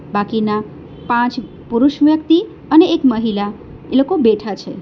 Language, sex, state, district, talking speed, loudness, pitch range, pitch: Gujarati, female, Gujarat, Valsad, 135 wpm, -15 LUFS, 205-285 Hz, 235 Hz